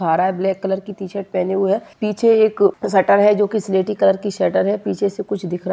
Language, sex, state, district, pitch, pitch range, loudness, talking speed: Hindi, male, Maharashtra, Dhule, 200 Hz, 190-205 Hz, -18 LUFS, 250 wpm